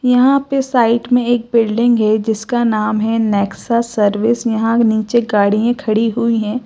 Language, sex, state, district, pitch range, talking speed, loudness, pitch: Hindi, female, Gujarat, Gandhinagar, 220-240 Hz, 160 wpm, -15 LUFS, 230 Hz